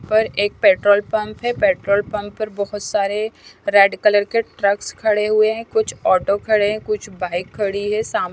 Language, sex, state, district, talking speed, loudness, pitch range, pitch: Hindi, female, Punjab, Kapurthala, 185 wpm, -18 LUFS, 200-220 Hz, 210 Hz